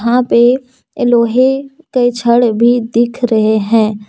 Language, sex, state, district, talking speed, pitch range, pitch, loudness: Hindi, female, Jharkhand, Deoghar, 145 wpm, 230-250 Hz, 240 Hz, -12 LUFS